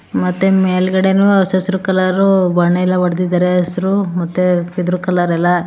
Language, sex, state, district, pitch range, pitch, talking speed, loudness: Kannada, female, Karnataka, Mysore, 180-190 Hz, 180 Hz, 150 wpm, -14 LUFS